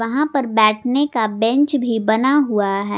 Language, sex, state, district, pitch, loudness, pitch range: Hindi, female, Jharkhand, Garhwa, 230 Hz, -17 LUFS, 215-275 Hz